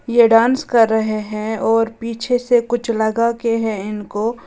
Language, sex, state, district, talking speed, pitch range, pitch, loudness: Hindi, female, Uttar Pradesh, Lalitpur, 175 wpm, 220-235 Hz, 230 Hz, -17 LUFS